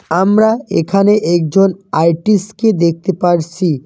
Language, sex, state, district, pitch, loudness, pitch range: Bengali, male, West Bengal, Cooch Behar, 185 Hz, -13 LUFS, 170-205 Hz